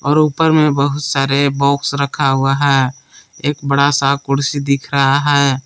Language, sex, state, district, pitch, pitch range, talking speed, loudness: Hindi, male, Jharkhand, Palamu, 140 Hz, 140-145 Hz, 170 wpm, -15 LUFS